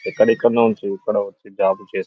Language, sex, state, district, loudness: Telugu, male, Telangana, Nalgonda, -19 LUFS